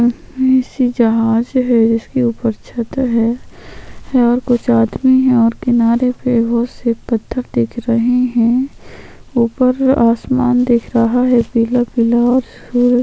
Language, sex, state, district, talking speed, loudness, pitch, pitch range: Hindi, female, Chhattisgarh, Sukma, 135 wpm, -14 LUFS, 240 Hz, 230-250 Hz